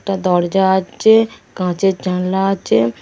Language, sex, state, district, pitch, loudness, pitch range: Bengali, female, West Bengal, Dakshin Dinajpur, 190 Hz, -16 LUFS, 180-195 Hz